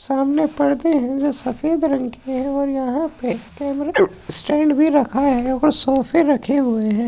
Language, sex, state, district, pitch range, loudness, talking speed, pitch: Hindi, male, Uttar Pradesh, Jyotiba Phule Nagar, 260-300 Hz, -18 LUFS, 170 wpm, 280 Hz